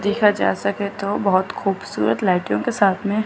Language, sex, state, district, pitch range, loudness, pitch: Hindi, female, Chandigarh, Chandigarh, 195-205 Hz, -20 LUFS, 200 Hz